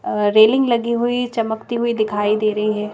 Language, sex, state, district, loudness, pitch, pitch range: Hindi, female, Madhya Pradesh, Bhopal, -18 LUFS, 220 Hz, 210-235 Hz